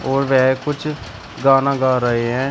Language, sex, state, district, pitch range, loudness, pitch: Hindi, male, Uttar Pradesh, Shamli, 125-135 Hz, -17 LUFS, 130 Hz